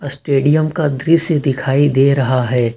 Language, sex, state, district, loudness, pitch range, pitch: Hindi, male, Jharkhand, Ranchi, -15 LUFS, 135-150 Hz, 140 Hz